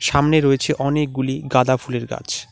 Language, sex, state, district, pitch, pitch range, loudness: Bengali, male, West Bengal, Alipurduar, 135 Hz, 130-145 Hz, -19 LUFS